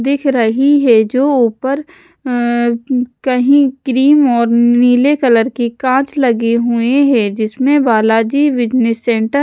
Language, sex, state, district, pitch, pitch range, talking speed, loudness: Hindi, female, Odisha, Sambalpur, 250 Hz, 235-275 Hz, 140 wpm, -12 LUFS